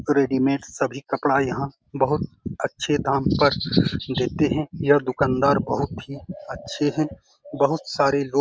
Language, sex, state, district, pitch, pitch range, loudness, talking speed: Hindi, male, Bihar, Saran, 140 Hz, 135-145 Hz, -23 LUFS, 145 wpm